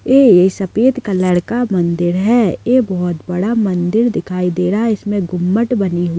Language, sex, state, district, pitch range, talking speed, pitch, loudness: Hindi, female, Chhattisgarh, Kabirdham, 180-230 Hz, 175 wpm, 195 Hz, -15 LUFS